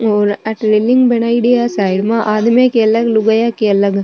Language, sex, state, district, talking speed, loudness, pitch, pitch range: Marwari, female, Rajasthan, Nagaur, 195 wpm, -13 LUFS, 220 Hz, 210-235 Hz